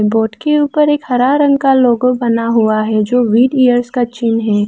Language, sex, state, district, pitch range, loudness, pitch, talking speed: Hindi, female, Arunachal Pradesh, Lower Dibang Valley, 225-265 Hz, -13 LUFS, 245 Hz, 215 wpm